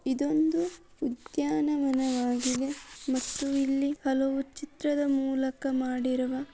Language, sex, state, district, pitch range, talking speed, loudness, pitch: Kannada, female, Karnataka, Dharwad, 260-295 Hz, 75 wpm, -29 LUFS, 275 Hz